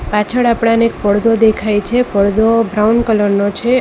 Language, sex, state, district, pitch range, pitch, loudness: Gujarati, female, Gujarat, Valsad, 205-230 Hz, 220 Hz, -13 LUFS